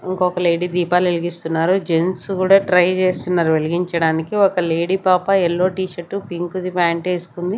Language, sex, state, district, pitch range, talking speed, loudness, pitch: Telugu, female, Andhra Pradesh, Sri Satya Sai, 170-185 Hz, 135 wpm, -18 LUFS, 180 Hz